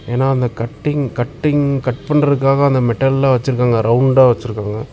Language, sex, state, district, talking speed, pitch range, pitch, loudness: Tamil, male, Tamil Nadu, Namakkal, 135 wpm, 120-140 Hz, 130 Hz, -15 LUFS